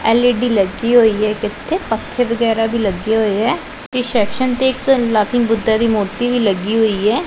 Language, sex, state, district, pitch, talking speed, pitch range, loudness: Punjabi, female, Punjab, Pathankot, 225 Hz, 175 wpm, 215-245 Hz, -16 LUFS